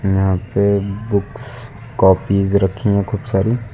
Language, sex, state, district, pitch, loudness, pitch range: Hindi, male, Uttar Pradesh, Lucknow, 100 Hz, -17 LUFS, 95-115 Hz